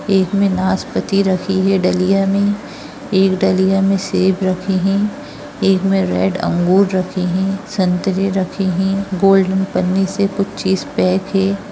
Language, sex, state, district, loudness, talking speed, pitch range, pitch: Hindi, female, Bihar, Darbhanga, -16 LUFS, 150 wpm, 185-195 Hz, 190 Hz